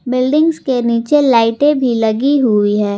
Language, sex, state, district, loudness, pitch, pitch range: Hindi, female, Jharkhand, Garhwa, -13 LUFS, 250 Hz, 225-285 Hz